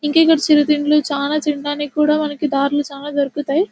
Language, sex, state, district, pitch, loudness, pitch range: Telugu, female, Telangana, Nalgonda, 295 Hz, -17 LUFS, 285-300 Hz